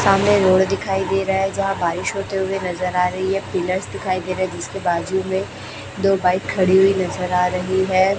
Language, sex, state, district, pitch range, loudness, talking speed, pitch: Hindi, female, Chhattisgarh, Raipur, 180-195 Hz, -19 LUFS, 220 wpm, 190 Hz